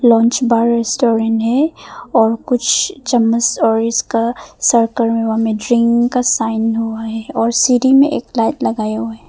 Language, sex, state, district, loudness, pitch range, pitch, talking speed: Hindi, female, Arunachal Pradesh, Papum Pare, -15 LUFS, 225-245 Hz, 230 Hz, 150 wpm